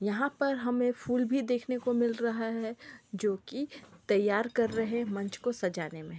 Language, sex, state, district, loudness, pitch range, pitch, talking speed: Magahi, female, Bihar, Samastipur, -31 LUFS, 205-245 Hz, 235 Hz, 175 wpm